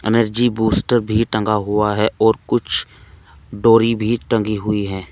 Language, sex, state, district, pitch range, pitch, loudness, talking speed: Hindi, male, Uttar Pradesh, Saharanpur, 105-115 Hz, 110 Hz, -17 LUFS, 150 wpm